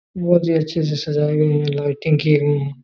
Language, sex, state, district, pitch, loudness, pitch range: Hindi, male, Jharkhand, Jamtara, 150 Hz, -18 LUFS, 145-160 Hz